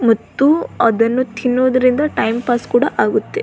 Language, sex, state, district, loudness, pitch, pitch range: Kannada, female, Karnataka, Belgaum, -16 LUFS, 250 Hz, 235-260 Hz